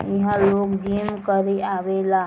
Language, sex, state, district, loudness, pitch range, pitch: Bhojpuri, female, Bihar, East Champaran, -21 LUFS, 195-200 Hz, 195 Hz